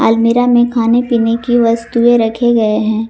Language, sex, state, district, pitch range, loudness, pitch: Hindi, female, Jharkhand, Garhwa, 225-240 Hz, -12 LUFS, 230 Hz